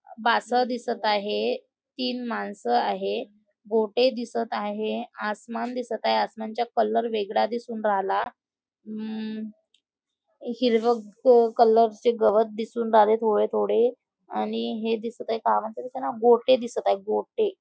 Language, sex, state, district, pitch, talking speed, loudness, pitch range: Marathi, female, Maharashtra, Nagpur, 225 Hz, 125 wpm, -25 LUFS, 210-240 Hz